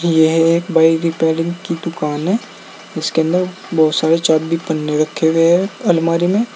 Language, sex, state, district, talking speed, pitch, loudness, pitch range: Hindi, male, Uttar Pradesh, Saharanpur, 165 wpm, 165 Hz, -16 LUFS, 160-175 Hz